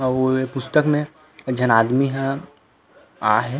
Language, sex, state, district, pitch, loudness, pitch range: Chhattisgarhi, male, Chhattisgarh, Rajnandgaon, 130 Hz, -20 LUFS, 125-140 Hz